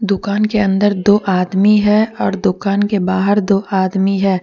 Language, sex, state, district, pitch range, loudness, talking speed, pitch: Hindi, female, Jharkhand, Deoghar, 190-205 Hz, -14 LUFS, 175 wpm, 200 Hz